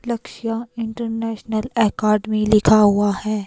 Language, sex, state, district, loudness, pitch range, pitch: Hindi, female, Himachal Pradesh, Shimla, -19 LUFS, 215-225 Hz, 220 Hz